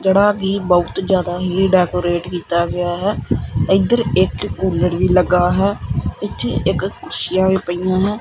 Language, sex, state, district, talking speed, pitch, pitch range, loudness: Punjabi, male, Punjab, Kapurthala, 155 wpm, 185 Hz, 175-190 Hz, -17 LUFS